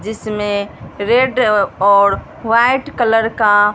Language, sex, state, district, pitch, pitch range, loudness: Hindi, female, Punjab, Fazilka, 215 Hz, 200-230 Hz, -14 LUFS